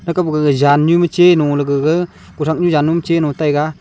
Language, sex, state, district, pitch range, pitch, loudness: Wancho, male, Arunachal Pradesh, Longding, 145-170 Hz, 155 Hz, -14 LUFS